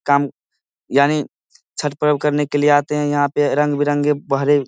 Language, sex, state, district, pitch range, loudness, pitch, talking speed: Hindi, male, Bihar, Samastipur, 145-150 Hz, -18 LUFS, 145 Hz, 180 wpm